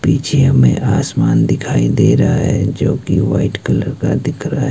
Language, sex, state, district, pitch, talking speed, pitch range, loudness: Hindi, male, Himachal Pradesh, Shimla, 140 Hz, 190 wpm, 135-150 Hz, -14 LUFS